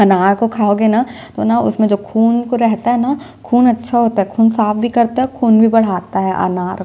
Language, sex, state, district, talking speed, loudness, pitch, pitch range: Hindi, female, Chhattisgarh, Jashpur, 245 wpm, -14 LUFS, 225 Hz, 205-240 Hz